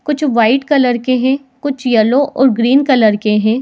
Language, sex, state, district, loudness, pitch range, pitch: Hindi, female, Jharkhand, Jamtara, -13 LUFS, 230-275 Hz, 255 Hz